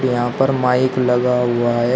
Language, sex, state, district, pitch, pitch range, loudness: Hindi, male, Uttar Pradesh, Shamli, 125 Hz, 120-130 Hz, -17 LUFS